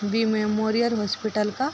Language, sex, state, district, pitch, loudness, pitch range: Hindi, female, Bihar, Darbhanga, 215 Hz, -24 LUFS, 210-225 Hz